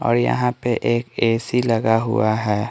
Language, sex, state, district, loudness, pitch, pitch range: Hindi, male, Bihar, Patna, -20 LUFS, 115 Hz, 115-120 Hz